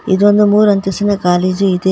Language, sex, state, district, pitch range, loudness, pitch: Kannada, female, Karnataka, Koppal, 190-205 Hz, -12 LUFS, 195 Hz